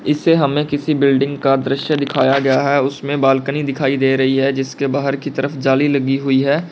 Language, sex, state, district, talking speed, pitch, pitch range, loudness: Hindi, male, Uttar Pradesh, Lalitpur, 205 wpm, 140 Hz, 135-145 Hz, -16 LUFS